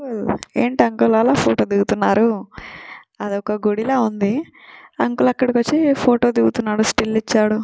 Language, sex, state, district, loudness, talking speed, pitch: Telugu, female, Telangana, Nalgonda, -18 LUFS, 150 wpm, 215 Hz